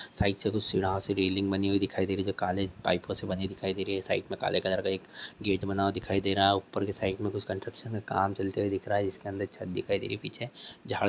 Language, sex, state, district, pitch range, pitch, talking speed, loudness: Hindi, male, Jharkhand, Sahebganj, 95-100 Hz, 100 Hz, 315 wpm, -30 LUFS